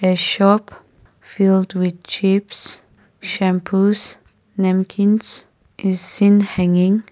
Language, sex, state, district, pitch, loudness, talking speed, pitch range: English, female, Nagaland, Kohima, 195 Hz, -17 LUFS, 85 wpm, 185-205 Hz